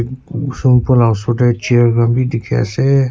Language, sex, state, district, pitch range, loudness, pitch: Nagamese, male, Nagaland, Kohima, 115-130 Hz, -14 LUFS, 120 Hz